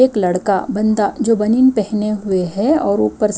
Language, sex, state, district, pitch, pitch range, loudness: Hindi, female, Himachal Pradesh, Shimla, 210 Hz, 195-235 Hz, -16 LUFS